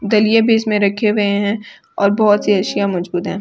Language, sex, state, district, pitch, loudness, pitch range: Hindi, female, Delhi, New Delhi, 205 Hz, -15 LUFS, 200-215 Hz